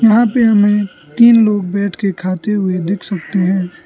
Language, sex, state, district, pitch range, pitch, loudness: Hindi, male, Arunachal Pradesh, Lower Dibang Valley, 185-215 Hz, 200 Hz, -14 LUFS